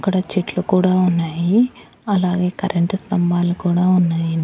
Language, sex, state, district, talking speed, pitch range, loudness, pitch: Telugu, female, Andhra Pradesh, Annamaya, 120 wpm, 175-190 Hz, -18 LUFS, 180 Hz